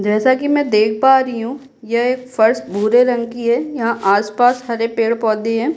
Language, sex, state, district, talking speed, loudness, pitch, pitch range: Hindi, female, Bihar, Kishanganj, 200 wpm, -16 LUFS, 235 Hz, 220-255 Hz